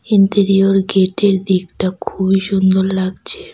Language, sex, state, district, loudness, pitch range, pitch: Bengali, female, West Bengal, Cooch Behar, -15 LUFS, 190-200 Hz, 195 Hz